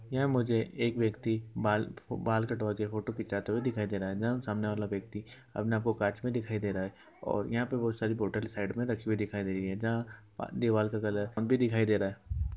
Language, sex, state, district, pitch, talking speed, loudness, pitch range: Maithili, male, Bihar, Samastipur, 110 Hz, 245 wpm, -33 LUFS, 105-115 Hz